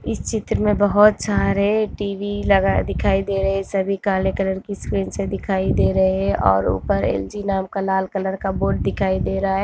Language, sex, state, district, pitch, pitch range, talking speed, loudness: Hindi, female, Andhra Pradesh, Chittoor, 195 Hz, 190-200 Hz, 195 wpm, -20 LUFS